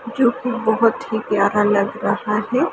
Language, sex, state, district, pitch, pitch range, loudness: Hindi, female, Uttar Pradesh, Varanasi, 220 Hz, 210-235 Hz, -19 LUFS